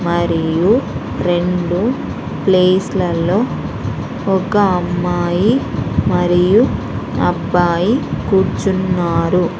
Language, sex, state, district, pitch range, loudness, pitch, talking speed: Telugu, female, Andhra Pradesh, Sri Satya Sai, 175-195 Hz, -16 LUFS, 180 Hz, 55 wpm